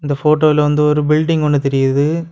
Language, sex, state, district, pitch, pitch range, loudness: Tamil, male, Tamil Nadu, Kanyakumari, 150 Hz, 145-155 Hz, -14 LUFS